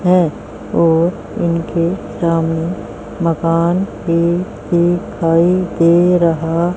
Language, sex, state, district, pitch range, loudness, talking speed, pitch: Hindi, female, Haryana, Jhajjar, 165-175 Hz, -15 LUFS, 80 wpm, 170 Hz